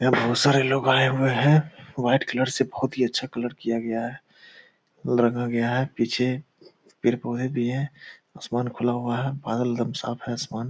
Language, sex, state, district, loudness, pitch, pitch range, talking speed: Hindi, male, Bihar, Purnia, -24 LUFS, 125 Hz, 120-135 Hz, 200 wpm